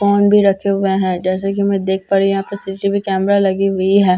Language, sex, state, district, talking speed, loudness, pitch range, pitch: Hindi, female, Bihar, Katihar, 275 wpm, -16 LUFS, 190-200 Hz, 195 Hz